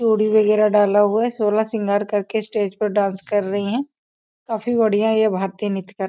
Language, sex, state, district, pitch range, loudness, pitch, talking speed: Hindi, female, Bihar, East Champaran, 205-220 Hz, -19 LUFS, 210 Hz, 215 wpm